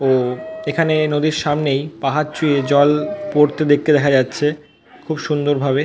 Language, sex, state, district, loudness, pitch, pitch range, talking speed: Bengali, male, West Bengal, North 24 Parganas, -17 LUFS, 150 Hz, 140-155 Hz, 145 wpm